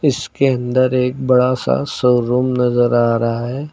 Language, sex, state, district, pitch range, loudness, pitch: Hindi, male, Uttar Pradesh, Lucknow, 120-130 Hz, -16 LUFS, 125 Hz